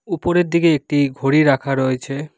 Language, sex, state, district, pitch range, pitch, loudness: Bengali, male, West Bengal, Alipurduar, 135-170 Hz, 145 Hz, -17 LUFS